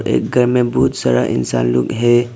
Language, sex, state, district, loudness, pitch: Hindi, male, Arunachal Pradesh, Papum Pare, -15 LUFS, 115 Hz